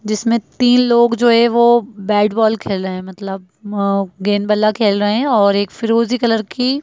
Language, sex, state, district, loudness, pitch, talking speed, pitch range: Hindi, female, Bihar, Darbhanga, -15 LUFS, 215 Hz, 195 wpm, 200-235 Hz